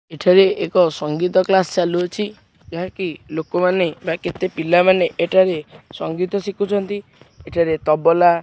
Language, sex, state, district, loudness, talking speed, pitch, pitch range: Odia, male, Odisha, Khordha, -18 LUFS, 105 wpm, 175 Hz, 165-185 Hz